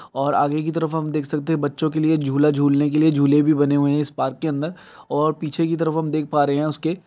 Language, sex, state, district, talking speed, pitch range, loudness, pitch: Maithili, male, Bihar, Samastipur, 270 wpm, 145-160 Hz, -20 LUFS, 155 Hz